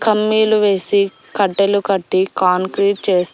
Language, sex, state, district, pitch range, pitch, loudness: Telugu, female, Andhra Pradesh, Annamaya, 185-205 Hz, 200 Hz, -16 LUFS